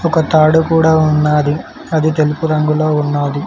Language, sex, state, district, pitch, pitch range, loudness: Telugu, male, Telangana, Mahabubabad, 155 Hz, 150-160 Hz, -13 LUFS